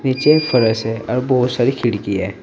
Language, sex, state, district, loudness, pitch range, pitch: Hindi, male, Uttar Pradesh, Saharanpur, -17 LUFS, 110-130 Hz, 125 Hz